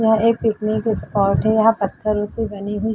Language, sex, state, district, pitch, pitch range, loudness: Hindi, female, Uttar Pradesh, Jalaun, 215 Hz, 210-220 Hz, -19 LUFS